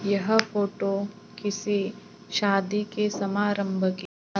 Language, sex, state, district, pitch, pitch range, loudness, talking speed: Hindi, female, Maharashtra, Gondia, 205 Hz, 195-210 Hz, -27 LUFS, 110 wpm